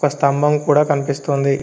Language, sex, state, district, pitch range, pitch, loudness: Telugu, male, Telangana, Komaram Bheem, 140-145 Hz, 140 Hz, -17 LUFS